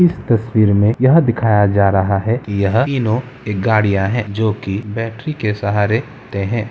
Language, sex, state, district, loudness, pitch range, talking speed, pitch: Hindi, male, Bihar, Samastipur, -16 LUFS, 100-120 Hz, 185 wpm, 110 Hz